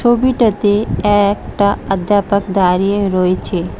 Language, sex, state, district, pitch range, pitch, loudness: Bengali, female, West Bengal, Cooch Behar, 190-205 Hz, 200 Hz, -14 LUFS